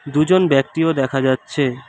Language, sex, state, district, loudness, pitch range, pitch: Bengali, male, West Bengal, Alipurduar, -17 LUFS, 135-160 Hz, 140 Hz